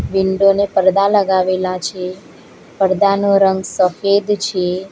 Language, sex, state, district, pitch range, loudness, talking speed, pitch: Gujarati, female, Gujarat, Valsad, 185-200 Hz, -15 LUFS, 95 wpm, 190 Hz